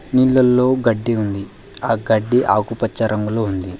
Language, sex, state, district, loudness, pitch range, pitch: Telugu, male, Telangana, Hyderabad, -17 LUFS, 105-125 Hz, 115 Hz